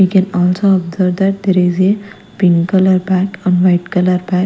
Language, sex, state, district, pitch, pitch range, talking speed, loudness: English, female, Punjab, Kapurthala, 185 Hz, 180-190 Hz, 200 wpm, -13 LUFS